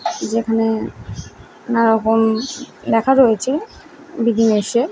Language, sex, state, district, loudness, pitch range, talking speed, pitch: Bengali, female, West Bengal, Malda, -17 LUFS, 225-270 Hz, 75 wpm, 230 Hz